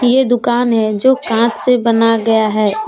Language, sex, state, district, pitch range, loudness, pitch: Hindi, female, Jharkhand, Deoghar, 225-250 Hz, -13 LUFS, 230 Hz